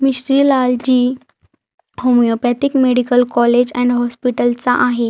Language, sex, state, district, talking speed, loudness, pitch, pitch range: Marathi, female, Maharashtra, Aurangabad, 95 wpm, -15 LUFS, 245 Hz, 240-255 Hz